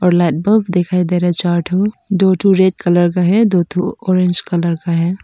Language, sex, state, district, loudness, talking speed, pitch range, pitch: Hindi, female, Arunachal Pradesh, Papum Pare, -14 LUFS, 240 wpm, 175-190 Hz, 180 Hz